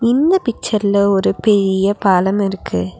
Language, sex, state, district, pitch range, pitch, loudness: Tamil, female, Tamil Nadu, Nilgiris, 190-215 Hz, 200 Hz, -15 LUFS